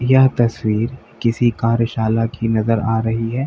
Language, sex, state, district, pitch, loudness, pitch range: Hindi, male, Uttar Pradesh, Lalitpur, 115 Hz, -18 LUFS, 115-120 Hz